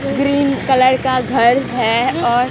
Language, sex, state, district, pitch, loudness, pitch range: Hindi, female, Bihar, Kaimur, 260 Hz, -15 LUFS, 245-275 Hz